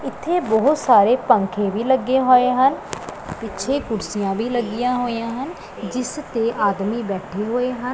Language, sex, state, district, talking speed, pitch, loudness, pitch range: Punjabi, female, Punjab, Pathankot, 150 wpm, 245 Hz, -20 LUFS, 215-255 Hz